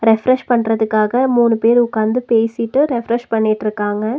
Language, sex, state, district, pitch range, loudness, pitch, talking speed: Tamil, female, Tamil Nadu, Nilgiris, 220-240 Hz, -16 LUFS, 230 Hz, 115 wpm